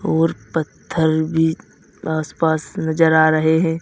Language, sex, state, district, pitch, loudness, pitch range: Hindi, male, Uttar Pradesh, Saharanpur, 160 Hz, -18 LUFS, 160-165 Hz